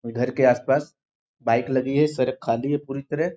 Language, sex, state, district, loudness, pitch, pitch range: Hindi, male, Bihar, Sitamarhi, -23 LUFS, 130 Hz, 125-145 Hz